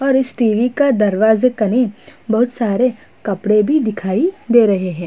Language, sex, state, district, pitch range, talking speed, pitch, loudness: Hindi, female, Uttar Pradesh, Budaun, 210-255 Hz, 165 wpm, 230 Hz, -16 LUFS